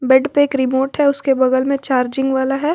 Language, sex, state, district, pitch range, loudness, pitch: Hindi, female, Jharkhand, Garhwa, 260-280 Hz, -16 LUFS, 270 Hz